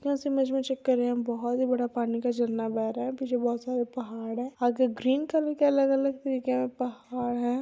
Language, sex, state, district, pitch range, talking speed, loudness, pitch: Hindi, female, Andhra Pradesh, Chittoor, 240-265 Hz, 235 wpm, -28 LUFS, 250 Hz